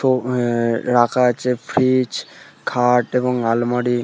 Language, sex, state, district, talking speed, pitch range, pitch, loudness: Bengali, male, West Bengal, Purulia, 120 wpm, 120-125 Hz, 125 Hz, -18 LUFS